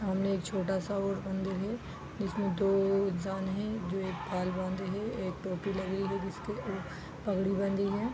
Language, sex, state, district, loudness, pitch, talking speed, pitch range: Hindi, female, Bihar, East Champaran, -33 LUFS, 195 Hz, 185 wpm, 190-200 Hz